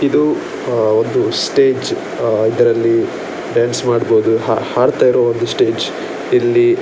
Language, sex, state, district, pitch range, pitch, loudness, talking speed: Kannada, male, Karnataka, Dakshina Kannada, 115-145 Hz, 120 Hz, -15 LUFS, 125 wpm